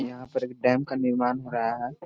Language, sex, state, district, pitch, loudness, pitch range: Hindi, male, Chhattisgarh, Korba, 125 Hz, -27 LUFS, 125-130 Hz